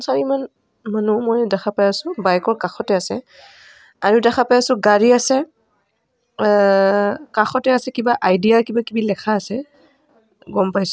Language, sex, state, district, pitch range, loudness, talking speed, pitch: Assamese, female, Assam, Kamrup Metropolitan, 200-245 Hz, -17 LUFS, 145 wpm, 220 Hz